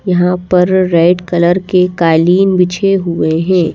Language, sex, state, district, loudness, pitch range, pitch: Hindi, female, Madhya Pradesh, Bhopal, -11 LUFS, 170-185 Hz, 180 Hz